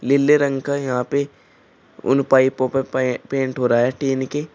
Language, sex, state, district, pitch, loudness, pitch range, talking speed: Hindi, male, Uttar Pradesh, Shamli, 135 Hz, -19 LUFS, 130-140 Hz, 195 wpm